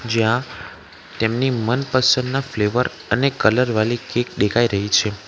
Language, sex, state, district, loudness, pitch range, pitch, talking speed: Gujarati, male, Gujarat, Valsad, -19 LUFS, 110-125 Hz, 120 Hz, 125 wpm